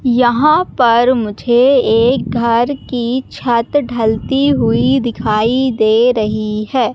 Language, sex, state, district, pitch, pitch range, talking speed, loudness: Hindi, female, Madhya Pradesh, Katni, 240 Hz, 225-260 Hz, 110 wpm, -13 LUFS